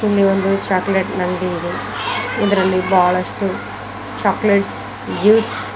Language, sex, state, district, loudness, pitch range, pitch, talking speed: Kannada, female, Karnataka, Koppal, -17 LUFS, 180-200 Hz, 190 Hz, 105 wpm